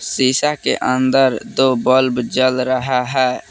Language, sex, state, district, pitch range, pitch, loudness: Hindi, male, Jharkhand, Palamu, 125-130 Hz, 130 Hz, -16 LUFS